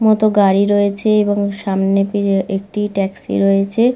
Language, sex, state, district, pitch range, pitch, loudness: Bengali, female, West Bengal, Malda, 195-210 Hz, 200 Hz, -16 LUFS